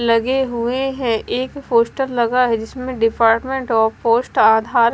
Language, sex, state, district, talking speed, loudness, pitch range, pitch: Hindi, female, Bihar, West Champaran, 145 wpm, -17 LUFS, 230-255 Hz, 235 Hz